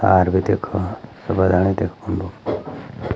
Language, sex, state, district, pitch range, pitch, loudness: Garhwali, male, Uttarakhand, Uttarkashi, 95-110 Hz, 95 Hz, -20 LUFS